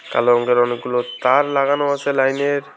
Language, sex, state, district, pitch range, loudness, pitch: Bengali, male, West Bengal, Alipurduar, 120-140 Hz, -18 LUFS, 135 Hz